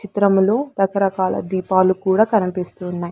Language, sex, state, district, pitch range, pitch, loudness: Telugu, female, Andhra Pradesh, Sri Satya Sai, 185-200 Hz, 190 Hz, -18 LUFS